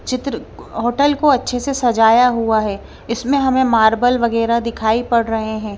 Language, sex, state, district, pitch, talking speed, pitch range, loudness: Hindi, female, Punjab, Kapurthala, 235 Hz, 165 wpm, 225-255 Hz, -16 LUFS